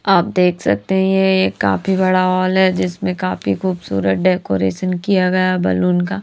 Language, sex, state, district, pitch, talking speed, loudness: Hindi, female, Haryana, Rohtak, 185 Hz, 175 wpm, -16 LUFS